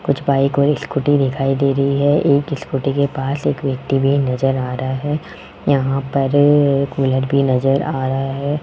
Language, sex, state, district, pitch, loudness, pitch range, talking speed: Hindi, male, Rajasthan, Jaipur, 140 Hz, -17 LUFS, 135-140 Hz, 200 wpm